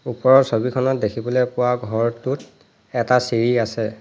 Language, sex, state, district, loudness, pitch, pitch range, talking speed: Assamese, male, Assam, Hailakandi, -20 LUFS, 120 Hz, 115-125 Hz, 120 wpm